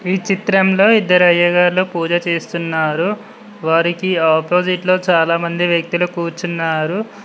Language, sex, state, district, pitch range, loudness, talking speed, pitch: Telugu, male, Telangana, Mahabubabad, 170-185 Hz, -15 LUFS, 100 wpm, 175 Hz